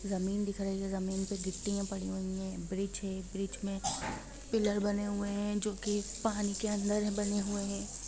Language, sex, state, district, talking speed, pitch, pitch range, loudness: Hindi, female, Jharkhand, Jamtara, 195 wpm, 200 Hz, 195-205 Hz, -35 LUFS